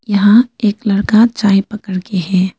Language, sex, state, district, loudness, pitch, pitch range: Hindi, female, Arunachal Pradesh, Lower Dibang Valley, -13 LUFS, 205 Hz, 195-220 Hz